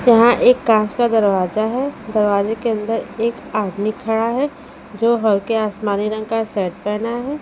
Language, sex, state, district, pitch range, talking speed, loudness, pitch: Hindi, female, Chhattisgarh, Raipur, 210-235 Hz, 170 wpm, -18 LUFS, 220 Hz